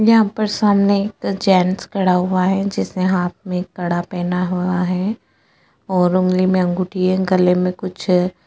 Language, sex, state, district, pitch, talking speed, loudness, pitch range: Hindi, female, Chhattisgarh, Sukma, 185 Hz, 170 wpm, -18 LUFS, 180-195 Hz